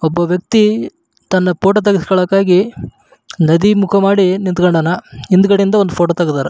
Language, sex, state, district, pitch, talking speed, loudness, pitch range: Kannada, male, Karnataka, Raichur, 185 Hz, 130 wpm, -13 LUFS, 175-200 Hz